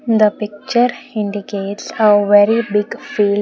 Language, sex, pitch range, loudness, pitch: English, female, 205-225 Hz, -16 LUFS, 210 Hz